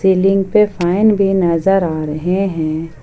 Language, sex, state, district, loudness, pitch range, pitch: Hindi, female, Jharkhand, Ranchi, -15 LUFS, 165-195 Hz, 185 Hz